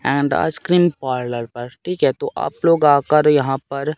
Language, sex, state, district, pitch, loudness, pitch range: Hindi, male, Madhya Pradesh, Katni, 145 Hz, -17 LUFS, 135-160 Hz